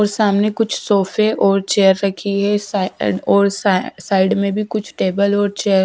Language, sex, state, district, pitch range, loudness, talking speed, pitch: Hindi, female, Punjab, Kapurthala, 195-210 Hz, -17 LUFS, 195 wpm, 200 Hz